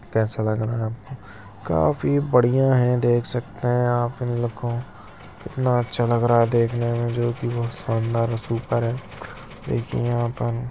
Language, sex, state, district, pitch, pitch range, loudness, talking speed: Hindi, male, Bihar, Saharsa, 120 Hz, 115-120 Hz, -23 LUFS, 180 wpm